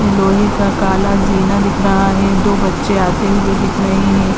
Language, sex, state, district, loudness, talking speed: Hindi, female, Uttar Pradesh, Hamirpur, -13 LUFS, 190 wpm